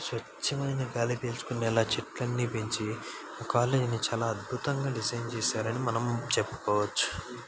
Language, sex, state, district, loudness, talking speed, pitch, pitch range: Telugu, male, Andhra Pradesh, Srikakulam, -31 LUFS, 105 wpm, 120 Hz, 115-125 Hz